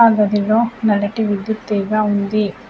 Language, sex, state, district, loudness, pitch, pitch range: Telugu, female, Telangana, Adilabad, -17 LUFS, 210 Hz, 205-220 Hz